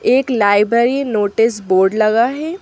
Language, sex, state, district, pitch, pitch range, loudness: Hindi, female, Madhya Pradesh, Bhopal, 225 Hz, 205-255 Hz, -14 LUFS